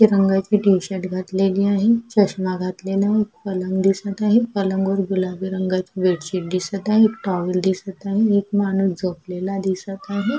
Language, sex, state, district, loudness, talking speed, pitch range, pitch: Marathi, female, Maharashtra, Sindhudurg, -20 LUFS, 150 wpm, 185-200 Hz, 195 Hz